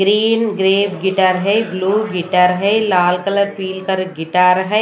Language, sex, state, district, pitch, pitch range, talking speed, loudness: Hindi, female, Odisha, Nuapada, 190 Hz, 185-200 Hz, 160 wpm, -15 LUFS